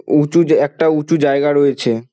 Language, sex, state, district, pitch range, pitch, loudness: Bengali, male, West Bengal, Dakshin Dinajpur, 140-155 Hz, 145 Hz, -14 LUFS